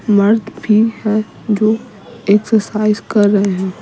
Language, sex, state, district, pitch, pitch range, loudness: Hindi, female, Bihar, Patna, 215 Hz, 205-220 Hz, -15 LUFS